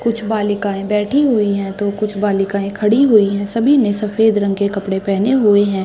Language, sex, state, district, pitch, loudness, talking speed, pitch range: Hindi, female, Chhattisgarh, Rajnandgaon, 205 Hz, -15 LUFS, 205 wpm, 200-220 Hz